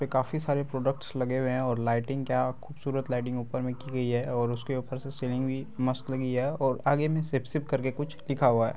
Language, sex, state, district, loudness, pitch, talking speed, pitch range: Hindi, male, Bihar, Araria, -30 LUFS, 130 Hz, 245 wpm, 125-140 Hz